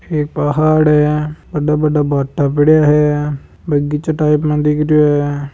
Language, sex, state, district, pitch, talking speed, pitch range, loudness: Marwari, male, Rajasthan, Nagaur, 150 Hz, 150 wpm, 145-150 Hz, -14 LUFS